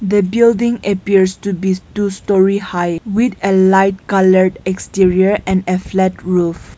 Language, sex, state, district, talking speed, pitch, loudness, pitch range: English, female, Nagaland, Kohima, 150 wpm, 190 Hz, -14 LUFS, 185-200 Hz